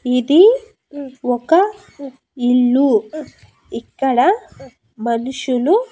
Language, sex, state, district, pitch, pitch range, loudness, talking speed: Telugu, female, Andhra Pradesh, Annamaya, 275 Hz, 250-365 Hz, -16 LUFS, 50 wpm